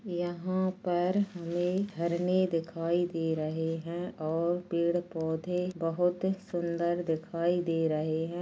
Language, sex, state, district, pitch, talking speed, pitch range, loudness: Hindi, female, Goa, North and South Goa, 175 Hz, 120 wpm, 165-180 Hz, -31 LUFS